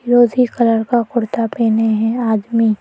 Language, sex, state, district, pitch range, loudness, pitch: Hindi, female, Madhya Pradesh, Bhopal, 225-240 Hz, -16 LUFS, 230 Hz